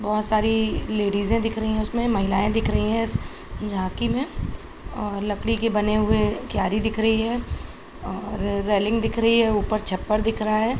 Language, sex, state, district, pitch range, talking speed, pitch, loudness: Hindi, male, Bihar, Araria, 210-225 Hz, 185 wpm, 215 Hz, -22 LUFS